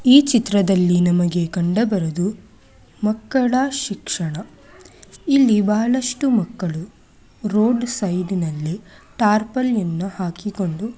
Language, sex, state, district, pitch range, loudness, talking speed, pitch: Kannada, female, Karnataka, Mysore, 175-235 Hz, -19 LUFS, 75 wpm, 205 Hz